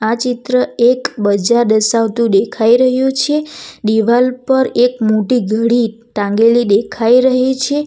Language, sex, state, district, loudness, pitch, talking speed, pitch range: Gujarati, female, Gujarat, Valsad, -13 LUFS, 235 Hz, 130 wpm, 220-255 Hz